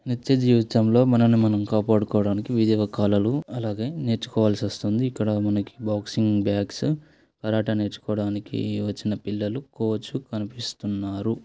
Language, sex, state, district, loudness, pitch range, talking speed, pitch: Telugu, male, Telangana, Nalgonda, -24 LUFS, 105-120 Hz, 100 wpm, 110 Hz